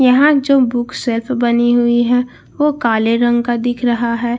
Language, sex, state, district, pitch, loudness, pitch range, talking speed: Hindi, female, Bihar, Katihar, 240 Hz, -14 LUFS, 240-255 Hz, 190 wpm